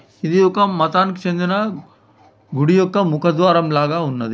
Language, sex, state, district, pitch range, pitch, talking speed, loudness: Telugu, male, Telangana, Hyderabad, 145-185 Hz, 170 Hz, 125 wpm, -17 LUFS